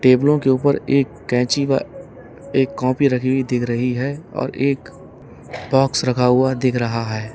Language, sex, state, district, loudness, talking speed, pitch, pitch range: Hindi, male, Uttar Pradesh, Lalitpur, -19 LUFS, 170 wpm, 130 Hz, 125-140 Hz